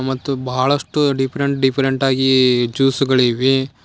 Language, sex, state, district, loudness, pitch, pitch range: Kannada, male, Karnataka, Koppal, -16 LUFS, 135 Hz, 130-135 Hz